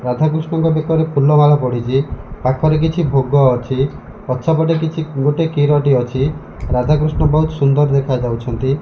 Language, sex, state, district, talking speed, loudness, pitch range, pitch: Odia, male, Odisha, Malkangiri, 115 wpm, -16 LUFS, 130-155 Hz, 145 Hz